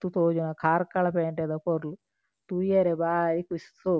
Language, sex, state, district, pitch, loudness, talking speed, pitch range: Tulu, female, Karnataka, Dakshina Kannada, 170 Hz, -27 LUFS, 120 wpm, 165-180 Hz